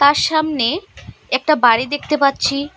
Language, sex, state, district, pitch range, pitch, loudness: Bengali, female, Assam, Hailakandi, 275-305 Hz, 285 Hz, -16 LUFS